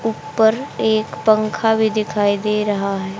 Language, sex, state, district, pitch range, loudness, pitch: Hindi, female, Haryana, Charkhi Dadri, 205-220 Hz, -18 LUFS, 215 Hz